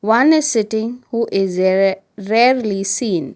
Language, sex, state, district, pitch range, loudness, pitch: English, female, Gujarat, Valsad, 195-235 Hz, -16 LUFS, 220 Hz